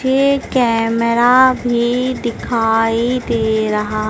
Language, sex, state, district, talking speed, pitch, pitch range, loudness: Hindi, female, Madhya Pradesh, Dhar, 90 wpm, 235 Hz, 225-255 Hz, -15 LUFS